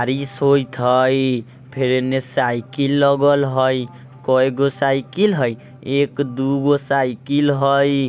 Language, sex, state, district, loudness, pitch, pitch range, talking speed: Bajjika, male, Bihar, Vaishali, -18 LUFS, 135 Hz, 130-140 Hz, 125 wpm